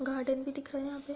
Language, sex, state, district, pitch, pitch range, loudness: Hindi, female, Uttar Pradesh, Budaun, 275 Hz, 265-280 Hz, -35 LUFS